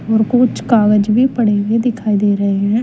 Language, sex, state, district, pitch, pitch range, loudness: Hindi, female, Uttar Pradesh, Saharanpur, 220 Hz, 205-230 Hz, -14 LUFS